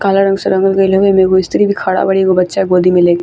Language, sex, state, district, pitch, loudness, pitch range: Bhojpuri, female, Bihar, Gopalganj, 190 Hz, -11 LUFS, 180-195 Hz